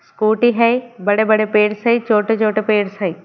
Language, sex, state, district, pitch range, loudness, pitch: Hindi, female, Haryana, Charkhi Dadri, 210-235 Hz, -16 LUFS, 215 Hz